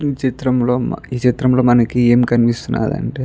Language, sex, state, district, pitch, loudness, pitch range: Telugu, male, Andhra Pradesh, Guntur, 125 Hz, -16 LUFS, 120-130 Hz